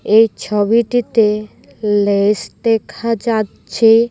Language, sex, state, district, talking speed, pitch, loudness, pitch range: Bengali, female, Assam, Hailakandi, 75 wpm, 220 Hz, -15 LUFS, 210-230 Hz